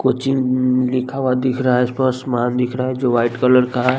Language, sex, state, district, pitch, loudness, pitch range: Hindi, male, Bihar, West Champaran, 125 Hz, -17 LUFS, 125-130 Hz